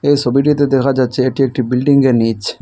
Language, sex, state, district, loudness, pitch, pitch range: Bengali, male, Assam, Hailakandi, -14 LUFS, 135 Hz, 125-140 Hz